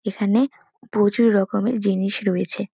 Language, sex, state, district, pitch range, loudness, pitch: Bengali, female, West Bengal, North 24 Parganas, 200-230 Hz, -21 LUFS, 210 Hz